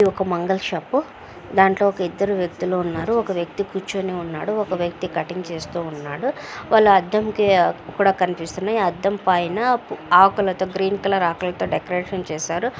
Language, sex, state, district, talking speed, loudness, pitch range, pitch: Telugu, female, Andhra Pradesh, Chittoor, 130 wpm, -21 LUFS, 175-200 Hz, 190 Hz